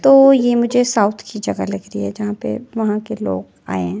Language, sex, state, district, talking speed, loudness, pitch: Hindi, female, Himachal Pradesh, Shimla, 240 wpm, -17 LUFS, 210 Hz